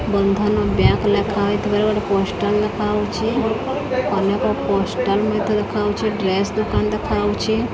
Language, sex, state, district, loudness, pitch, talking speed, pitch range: Odia, female, Odisha, Khordha, -19 LUFS, 210 Hz, 125 wpm, 205-215 Hz